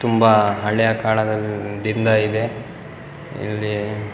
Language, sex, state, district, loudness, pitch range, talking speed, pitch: Kannada, male, Karnataka, Bellary, -19 LUFS, 105-115 Hz, 85 wpm, 110 Hz